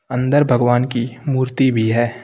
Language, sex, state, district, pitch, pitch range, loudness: Hindi, male, Uttar Pradesh, Lucknow, 125 Hz, 120-130 Hz, -17 LUFS